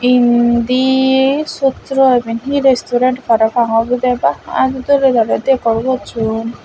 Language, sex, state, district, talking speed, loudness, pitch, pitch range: Chakma, female, Tripura, West Tripura, 115 wpm, -14 LUFS, 250 Hz, 235-265 Hz